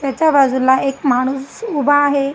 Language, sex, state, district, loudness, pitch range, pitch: Marathi, female, Maharashtra, Aurangabad, -15 LUFS, 265-290 Hz, 275 Hz